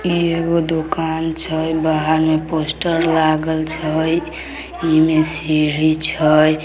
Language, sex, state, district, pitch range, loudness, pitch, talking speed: Magahi, female, Bihar, Samastipur, 155-165 Hz, -17 LUFS, 160 Hz, 110 wpm